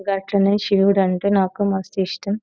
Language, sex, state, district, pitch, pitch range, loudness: Telugu, female, Telangana, Nalgonda, 195 Hz, 190-200 Hz, -19 LUFS